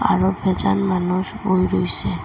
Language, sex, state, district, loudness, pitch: Bengali, female, Assam, Hailakandi, -19 LUFS, 180 Hz